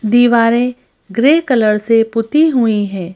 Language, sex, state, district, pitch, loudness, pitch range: Hindi, female, Madhya Pradesh, Bhopal, 230 Hz, -13 LUFS, 215-245 Hz